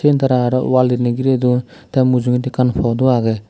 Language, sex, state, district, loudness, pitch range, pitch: Chakma, male, Tripura, Dhalai, -16 LUFS, 125-130 Hz, 125 Hz